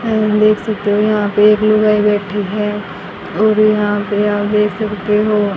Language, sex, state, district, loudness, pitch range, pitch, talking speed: Hindi, female, Haryana, Rohtak, -14 LUFS, 205-215 Hz, 210 Hz, 195 wpm